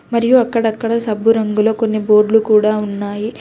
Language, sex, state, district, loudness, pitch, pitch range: Telugu, female, Telangana, Hyderabad, -15 LUFS, 220 Hz, 215-225 Hz